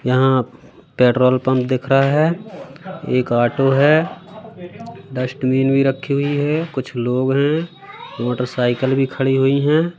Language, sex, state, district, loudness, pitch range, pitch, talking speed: Hindi, male, Madhya Pradesh, Katni, -17 LUFS, 130-155 Hz, 135 Hz, 130 wpm